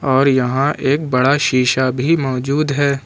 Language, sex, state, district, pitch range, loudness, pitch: Hindi, male, Jharkhand, Ranchi, 130-145 Hz, -16 LUFS, 135 Hz